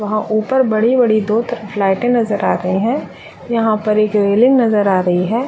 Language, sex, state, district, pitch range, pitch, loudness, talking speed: Hindi, female, Jharkhand, Sahebganj, 205-240 Hz, 215 Hz, -15 LUFS, 195 wpm